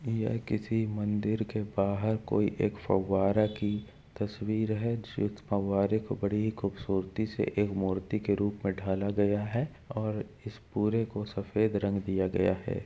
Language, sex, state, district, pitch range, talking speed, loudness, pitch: Hindi, male, Chhattisgarh, Korba, 100-110 Hz, 165 wpm, -31 LUFS, 105 Hz